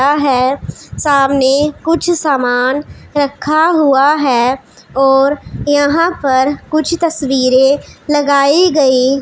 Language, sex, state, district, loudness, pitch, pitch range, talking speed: Hindi, female, Punjab, Pathankot, -12 LUFS, 280 Hz, 270-300 Hz, 90 wpm